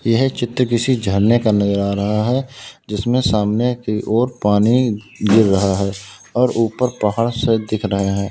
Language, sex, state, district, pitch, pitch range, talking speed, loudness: Hindi, male, Uttar Pradesh, Lalitpur, 110 Hz, 100-120 Hz, 175 wpm, -17 LUFS